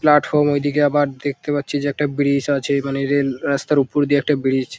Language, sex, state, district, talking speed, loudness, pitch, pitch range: Bengali, male, West Bengal, Jalpaiguri, 225 wpm, -19 LUFS, 145 Hz, 140-145 Hz